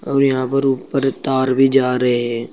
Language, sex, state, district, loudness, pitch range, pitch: Hindi, male, Uttar Pradesh, Saharanpur, -17 LUFS, 125-135 Hz, 135 Hz